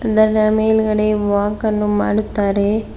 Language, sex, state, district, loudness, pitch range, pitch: Kannada, female, Karnataka, Bidar, -16 LUFS, 205-215 Hz, 215 Hz